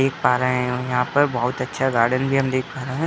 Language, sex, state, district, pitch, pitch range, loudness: Hindi, male, Uttar Pradesh, Etah, 130 Hz, 125-135 Hz, -21 LUFS